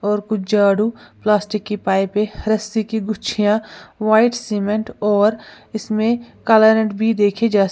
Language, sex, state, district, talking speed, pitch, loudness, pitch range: Hindi, female, Uttar Pradesh, Lalitpur, 140 wpm, 215 Hz, -18 LUFS, 205-220 Hz